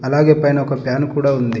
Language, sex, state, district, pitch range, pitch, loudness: Telugu, male, Telangana, Adilabad, 130-145 Hz, 140 Hz, -16 LUFS